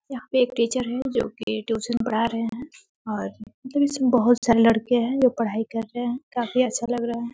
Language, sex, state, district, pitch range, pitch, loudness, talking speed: Hindi, female, Bihar, Gopalganj, 230-255 Hz, 240 Hz, -23 LUFS, 215 wpm